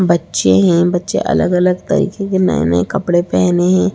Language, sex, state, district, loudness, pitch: Hindi, female, Bihar, Samastipur, -14 LUFS, 175 Hz